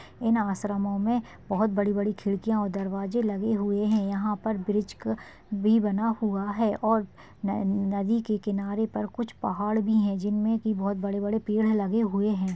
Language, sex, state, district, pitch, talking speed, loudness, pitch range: Hindi, female, Uttarakhand, Tehri Garhwal, 210 Hz, 185 wpm, -27 LUFS, 200-220 Hz